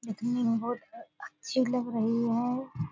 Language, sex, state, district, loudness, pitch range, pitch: Hindi, female, Bihar, Purnia, -30 LUFS, 230-260 Hz, 240 Hz